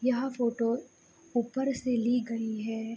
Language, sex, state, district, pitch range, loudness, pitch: Hindi, female, Bihar, Begusarai, 230-255 Hz, -31 LUFS, 240 Hz